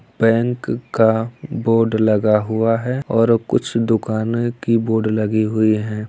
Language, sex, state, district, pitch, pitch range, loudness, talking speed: Hindi, male, Bihar, Saran, 115 Hz, 110-115 Hz, -18 LUFS, 140 wpm